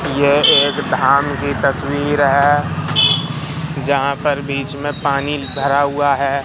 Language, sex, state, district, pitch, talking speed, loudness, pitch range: Hindi, male, Madhya Pradesh, Katni, 140 Hz, 130 wpm, -15 LUFS, 140-145 Hz